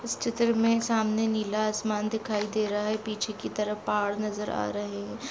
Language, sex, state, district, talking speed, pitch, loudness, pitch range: Hindi, female, Jharkhand, Jamtara, 205 wpm, 215 Hz, -28 LUFS, 210-220 Hz